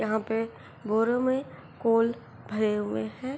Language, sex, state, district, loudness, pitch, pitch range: Hindi, female, Bihar, Begusarai, -28 LUFS, 225 Hz, 215-240 Hz